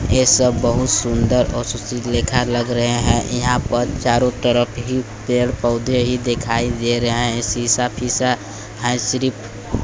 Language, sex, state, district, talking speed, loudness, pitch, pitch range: Hindi, male, Bihar, Kaimur, 160 wpm, -18 LUFS, 120 Hz, 120-125 Hz